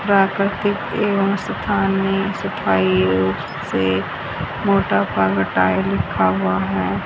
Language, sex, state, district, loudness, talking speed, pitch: Hindi, female, Haryana, Charkhi Dadri, -19 LUFS, 85 wpm, 95 Hz